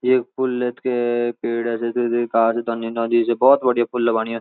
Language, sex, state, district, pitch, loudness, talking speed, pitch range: Garhwali, male, Uttarakhand, Uttarkashi, 120 Hz, -20 LUFS, 135 wpm, 115-125 Hz